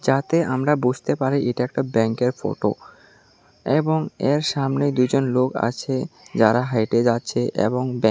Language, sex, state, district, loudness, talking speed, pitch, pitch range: Bengali, male, Tripura, South Tripura, -21 LUFS, 150 wpm, 125 Hz, 120-140 Hz